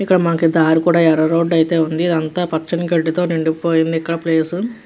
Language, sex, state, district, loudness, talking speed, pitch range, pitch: Telugu, female, Andhra Pradesh, Krishna, -16 LUFS, 210 wpm, 160-175 Hz, 165 Hz